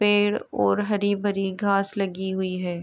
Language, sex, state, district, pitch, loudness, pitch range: Hindi, female, Uttar Pradesh, Etah, 195 Hz, -24 LUFS, 190-205 Hz